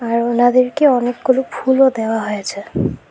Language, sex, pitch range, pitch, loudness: Bengali, female, 225-260 Hz, 245 Hz, -16 LUFS